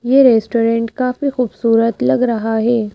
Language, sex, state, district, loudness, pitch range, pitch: Hindi, female, Madhya Pradesh, Bhopal, -15 LUFS, 225-250 Hz, 230 Hz